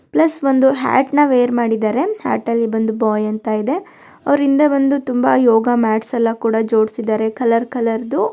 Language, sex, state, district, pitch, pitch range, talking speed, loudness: Kannada, female, Karnataka, Belgaum, 235 Hz, 225-275 Hz, 165 wpm, -16 LUFS